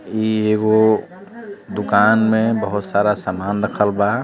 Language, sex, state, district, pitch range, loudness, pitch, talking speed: Bhojpuri, male, Uttar Pradesh, Deoria, 105-110 Hz, -17 LUFS, 110 Hz, 140 wpm